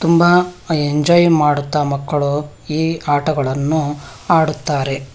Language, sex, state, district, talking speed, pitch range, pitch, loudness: Kannada, female, Karnataka, Bangalore, 80 wpm, 145-160 Hz, 150 Hz, -16 LUFS